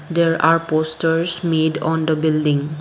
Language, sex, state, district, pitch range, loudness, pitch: English, female, Assam, Kamrup Metropolitan, 155-165 Hz, -18 LUFS, 160 Hz